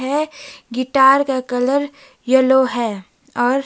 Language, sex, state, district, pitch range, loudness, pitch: Hindi, female, Himachal Pradesh, Shimla, 250-280 Hz, -17 LUFS, 265 Hz